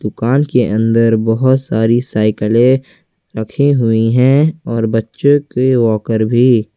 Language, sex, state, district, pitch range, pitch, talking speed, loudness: Hindi, male, Jharkhand, Ranchi, 110-130 Hz, 115 Hz, 125 wpm, -13 LUFS